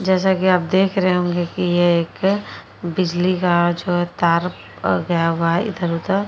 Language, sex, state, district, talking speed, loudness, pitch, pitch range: Hindi, female, Uttar Pradesh, Jyotiba Phule Nagar, 180 wpm, -19 LUFS, 175 Hz, 170-185 Hz